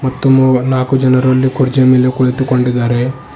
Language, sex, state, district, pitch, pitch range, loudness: Kannada, male, Karnataka, Bidar, 130 Hz, 125-130 Hz, -12 LUFS